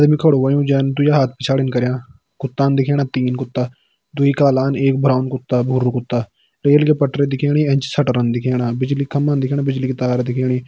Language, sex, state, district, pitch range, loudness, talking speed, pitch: Hindi, male, Uttarakhand, Tehri Garhwal, 125-140 Hz, -17 LUFS, 185 wpm, 135 Hz